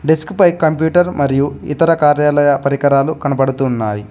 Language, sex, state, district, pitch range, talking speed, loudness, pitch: Telugu, male, Telangana, Mahabubabad, 140-160 Hz, 130 wpm, -14 LUFS, 145 Hz